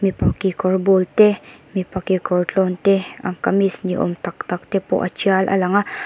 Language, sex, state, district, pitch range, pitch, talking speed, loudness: Mizo, female, Mizoram, Aizawl, 185-195 Hz, 190 Hz, 200 wpm, -19 LUFS